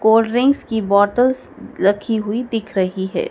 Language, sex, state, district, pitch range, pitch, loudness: Hindi, female, Madhya Pradesh, Dhar, 200-235 Hz, 220 Hz, -18 LUFS